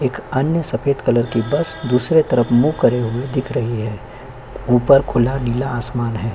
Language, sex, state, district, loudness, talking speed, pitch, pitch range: Hindi, male, Chhattisgarh, Korba, -18 LUFS, 160 wpm, 125 Hz, 120-135 Hz